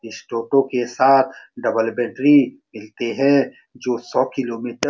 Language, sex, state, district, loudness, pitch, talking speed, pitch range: Hindi, male, Bihar, Saran, -19 LUFS, 125 Hz, 145 wpm, 115-135 Hz